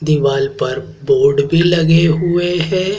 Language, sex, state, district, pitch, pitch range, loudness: Hindi, male, Madhya Pradesh, Dhar, 175 Hz, 160-185 Hz, -14 LUFS